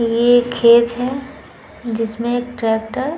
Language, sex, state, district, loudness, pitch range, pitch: Hindi, female, Uttar Pradesh, Muzaffarnagar, -16 LUFS, 230-245 Hz, 240 Hz